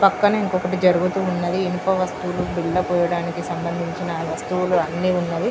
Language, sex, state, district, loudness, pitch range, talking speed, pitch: Telugu, female, Telangana, Karimnagar, -21 LUFS, 175-185 Hz, 130 wpm, 180 Hz